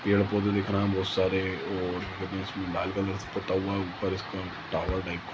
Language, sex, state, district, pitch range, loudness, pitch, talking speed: Hindi, male, Bihar, Samastipur, 95-100 Hz, -30 LUFS, 95 Hz, 215 wpm